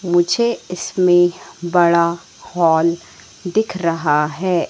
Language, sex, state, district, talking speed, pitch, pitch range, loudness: Hindi, female, Madhya Pradesh, Katni, 90 wpm, 175 Hz, 165-180 Hz, -17 LUFS